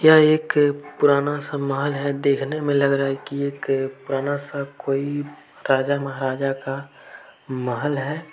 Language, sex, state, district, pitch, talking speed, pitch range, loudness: Hindi, male, Jharkhand, Deoghar, 140 Hz, 150 wpm, 135-145 Hz, -22 LUFS